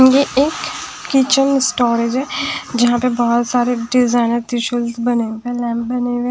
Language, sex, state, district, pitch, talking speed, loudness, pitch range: Hindi, female, Punjab, Pathankot, 245 Hz, 160 wpm, -17 LUFS, 240-265 Hz